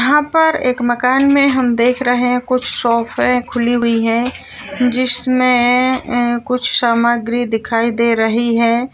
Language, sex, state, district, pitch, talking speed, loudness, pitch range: Hindi, female, Bihar, Jahanabad, 245 Hz, 140 wpm, -14 LUFS, 235-255 Hz